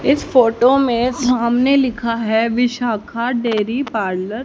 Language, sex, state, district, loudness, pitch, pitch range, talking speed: Hindi, female, Haryana, Jhajjar, -17 LUFS, 240 Hz, 230-250 Hz, 135 wpm